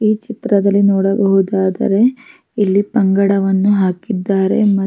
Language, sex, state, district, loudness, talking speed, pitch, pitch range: Kannada, female, Karnataka, Mysore, -14 LUFS, 85 wpm, 200 Hz, 195-215 Hz